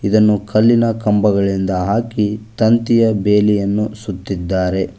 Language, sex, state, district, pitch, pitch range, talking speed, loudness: Kannada, male, Karnataka, Koppal, 105 Hz, 100-110 Hz, 85 wpm, -16 LUFS